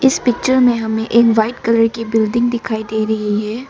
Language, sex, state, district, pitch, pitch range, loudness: Hindi, female, Arunachal Pradesh, Lower Dibang Valley, 230 Hz, 220-240 Hz, -15 LUFS